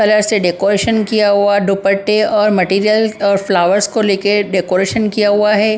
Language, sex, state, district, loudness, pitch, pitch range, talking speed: Hindi, female, Punjab, Pathankot, -13 LUFS, 205 Hz, 195-215 Hz, 175 wpm